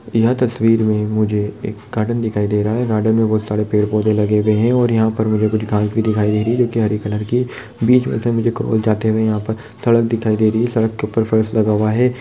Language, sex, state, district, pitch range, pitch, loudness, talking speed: Hindi, male, Bihar, Jamui, 105-115 Hz, 110 Hz, -17 LUFS, 270 wpm